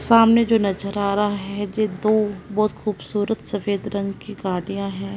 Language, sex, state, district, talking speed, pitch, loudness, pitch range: Hindi, female, Punjab, Kapurthala, 175 wpm, 205 Hz, -22 LUFS, 200-215 Hz